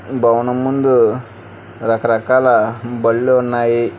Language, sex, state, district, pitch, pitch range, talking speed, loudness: Telugu, male, Telangana, Hyderabad, 120 Hz, 115-125 Hz, 75 wpm, -15 LUFS